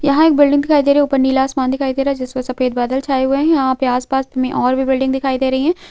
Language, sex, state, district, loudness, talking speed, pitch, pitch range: Hindi, female, Uttarakhand, Tehri Garhwal, -16 LUFS, 315 wpm, 265 Hz, 260-280 Hz